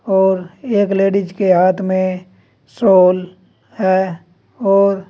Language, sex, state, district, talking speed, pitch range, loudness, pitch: Hindi, male, Uttar Pradesh, Saharanpur, 105 wpm, 180-195 Hz, -15 LUFS, 190 Hz